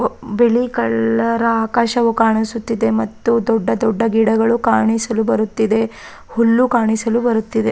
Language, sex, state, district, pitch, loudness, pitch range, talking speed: Kannada, female, Karnataka, Raichur, 225 Hz, -16 LUFS, 220-235 Hz, 110 wpm